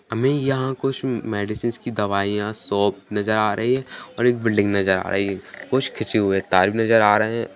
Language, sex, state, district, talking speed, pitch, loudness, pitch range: Hindi, male, Bihar, Jahanabad, 205 wpm, 110 Hz, -21 LUFS, 100-120 Hz